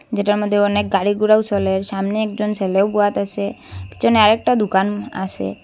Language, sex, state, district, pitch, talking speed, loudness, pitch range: Bengali, female, Assam, Hailakandi, 205 Hz, 170 wpm, -18 LUFS, 195-210 Hz